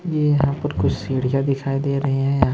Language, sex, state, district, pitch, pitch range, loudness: Hindi, male, Maharashtra, Mumbai Suburban, 140 Hz, 135-140 Hz, -21 LUFS